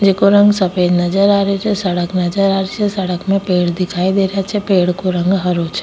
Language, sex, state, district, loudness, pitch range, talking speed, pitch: Rajasthani, female, Rajasthan, Nagaur, -15 LUFS, 180-195 Hz, 245 wpm, 190 Hz